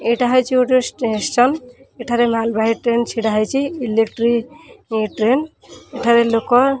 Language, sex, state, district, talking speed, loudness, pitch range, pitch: Odia, female, Odisha, Khordha, 130 wpm, -17 LUFS, 225-255 Hz, 240 Hz